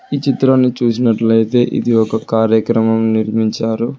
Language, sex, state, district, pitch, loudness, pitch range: Telugu, male, Telangana, Hyderabad, 115 Hz, -14 LUFS, 110-120 Hz